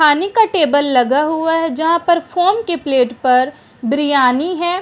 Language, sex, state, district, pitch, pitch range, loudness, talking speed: Hindi, female, Uttarakhand, Uttarkashi, 310 Hz, 275-345 Hz, -15 LUFS, 175 wpm